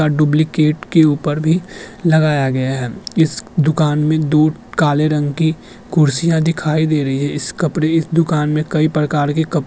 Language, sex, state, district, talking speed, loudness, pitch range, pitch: Hindi, male, Uttar Pradesh, Budaun, 185 wpm, -16 LUFS, 150-160 Hz, 155 Hz